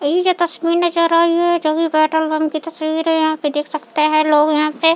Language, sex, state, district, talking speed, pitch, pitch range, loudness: Hindi, female, Chhattisgarh, Bilaspur, 255 wpm, 315 Hz, 310-335 Hz, -16 LUFS